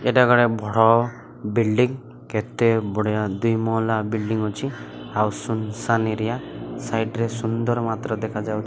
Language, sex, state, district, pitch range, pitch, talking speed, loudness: Odia, male, Odisha, Malkangiri, 105-115 Hz, 110 Hz, 125 wpm, -22 LUFS